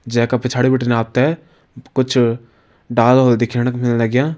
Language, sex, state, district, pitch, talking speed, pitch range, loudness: Hindi, male, Uttarakhand, Tehri Garhwal, 125 Hz, 180 wpm, 120-130 Hz, -16 LUFS